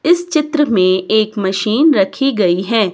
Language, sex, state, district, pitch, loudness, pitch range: Hindi, female, Himachal Pradesh, Shimla, 220 Hz, -14 LUFS, 190-300 Hz